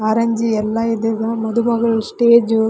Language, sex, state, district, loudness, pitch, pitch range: Kannada, female, Karnataka, Raichur, -16 LUFS, 225 Hz, 220-230 Hz